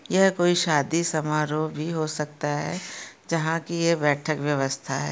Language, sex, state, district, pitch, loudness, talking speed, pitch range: Hindi, female, Maharashtra, Pune, 155 Hz, -25 LUFS, 165 wpm, 150-170 Hz